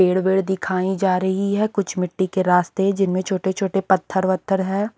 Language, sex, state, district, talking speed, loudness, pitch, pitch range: Hindi, female, Haryana, Charkhi Dadri, 195 wpm, -20 LUFS, 190 Hz, 185-195 Hz